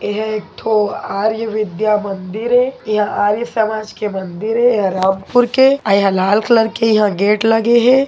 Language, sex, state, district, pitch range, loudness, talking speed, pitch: Hindi, male, Chhattisgarh, Korba, 205-230 Hz, -15 LUFS, 215 wpm, 215 Hz